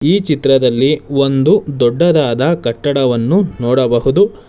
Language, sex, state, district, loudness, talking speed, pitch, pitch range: Kannada, male, Karnataka, Bangalore, -13 LUFS, 80 wpm, 140 Hz, 125-160 Hz